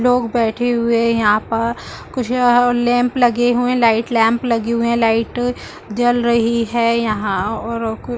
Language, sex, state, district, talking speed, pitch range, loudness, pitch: Hindi, female, Chhattisgarh, Bilaspur, 170 wpm, 230-245 Hz, -16 LUFS, 235 Hz